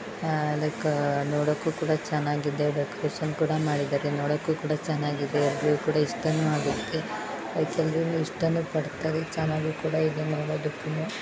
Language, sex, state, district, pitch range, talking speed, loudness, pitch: Kannada, female, Karnataka, Raichur, 145-160 Hz, 125 wpm, -28 LUFS, 155 Hz